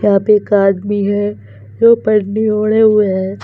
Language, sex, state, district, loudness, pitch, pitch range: Hindi, female, Uttar Pradesh, Lalitpur, -13 LUFS, 205 Hz, 195-215 Hz